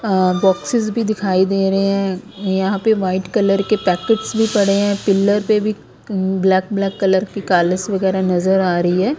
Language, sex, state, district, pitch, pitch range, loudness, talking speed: Hindi, female, Punjab, Kapurthala, 195 Hz, 190-210 Hz, -17 LUFS, 185 wpm